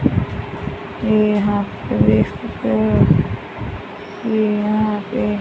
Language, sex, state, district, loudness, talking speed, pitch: Hindi, female, Haryana, Rohtak, -19 LUFS, 75 wpm, 205 Hz